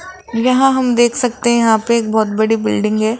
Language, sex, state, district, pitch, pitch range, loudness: Hindi, female, Rajasthan, Jaipur, 235 Hz, 220-250 Hz, -14 LUFS